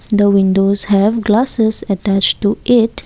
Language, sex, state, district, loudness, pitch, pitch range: English, female, Assam, Kamrup Metropolitan, -13 LUFS, 210 Hz, 200-225 Hz